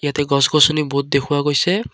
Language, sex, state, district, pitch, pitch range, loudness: Assamese, male, Assam, Kamrup Metropolitan, 145 Hz, 140-155 Hz, -16 LUFS